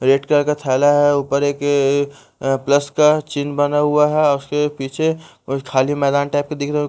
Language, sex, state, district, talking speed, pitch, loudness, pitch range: Hindi, male, Bihar, West Champaran, 200 wpm, 145 Hz, -17 LUFS, 140-150 Hz